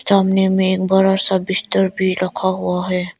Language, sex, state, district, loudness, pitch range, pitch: Hindi, female, Arunachal Pradesh, Lower Dibang Valley, -17 LUFS, 185-190 Hz, 190 Hz